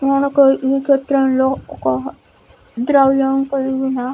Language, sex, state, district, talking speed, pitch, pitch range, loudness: Telugu, female, Andhra Pradesh, Guntur, 100 wpm, 270 Hz, 255-275 Hz, -16 LUFS